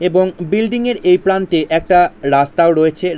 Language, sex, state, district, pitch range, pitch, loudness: Bengali, male, West Bengal, Jalpaiguri, 165-190 Hz, 180 Hz, -14 LUFS